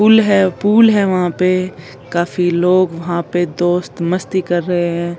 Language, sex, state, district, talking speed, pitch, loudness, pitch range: Hindi, female, Chandigarh, Chandigarh, 175 wpm, 180 Hz, -15 LUFS, 175-185 Hz